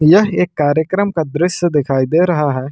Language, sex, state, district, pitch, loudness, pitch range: Hindi, male, Jharkhand, Ranchi, 160 Hz, -15 LUFS, 145-180 Hz